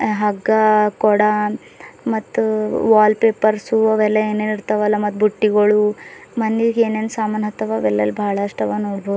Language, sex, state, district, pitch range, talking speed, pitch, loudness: Kannada, female, Karnataka, Bidar, 210-215 Hz, 125 wpm, 215 Hz, -17 LUFS